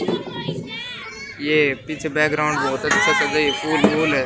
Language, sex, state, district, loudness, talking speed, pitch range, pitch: Hindi, male, Haryana, Jhajjar, -20 LUFS, 110 wpm, 150-155 Hz, 150 Hz